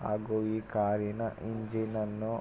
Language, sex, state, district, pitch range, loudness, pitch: Kannada, male, Karnataka, Mysore, 105-110 Hz, -33 LUFS, 110 Hz